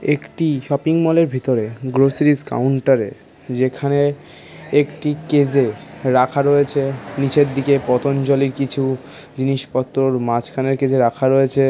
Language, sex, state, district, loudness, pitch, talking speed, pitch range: Bengali, male, West Bengal, North 24 Parganas, -18 LUFS, 135 Hz, 100 wpm, 130-145 Hz